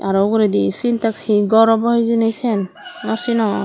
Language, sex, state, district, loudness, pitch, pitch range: Chakma, female, Tripura, Dhalai, -16 LUFS, 220 Hz, 205-230 Hz